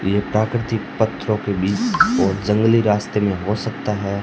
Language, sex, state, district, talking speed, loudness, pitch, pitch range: Hindi, male, Rajasthan, Bikaner, 170 wpm, -19 LUFS, 105 Hz, 100-110 Hz